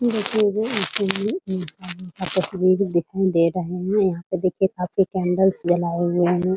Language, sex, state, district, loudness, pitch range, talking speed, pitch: Hindi, female, Bihar, Muzaffarpur, -21 LUFS, 175-195 Hz, 165 wpm, 185 Hz